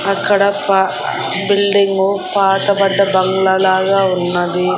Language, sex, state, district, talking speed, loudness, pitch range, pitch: Telugu, female, Andhra Pradesh, Annamaya, 90 wpm, -14 LUFS, 190-200 Hz, 195 Hz